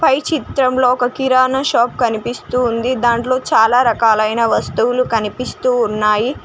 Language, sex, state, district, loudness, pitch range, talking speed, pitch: Telugu, female, Telangana, Mahabubabad, -15 LUFS, 230-255 Hz, 110 wpm, 245 Hz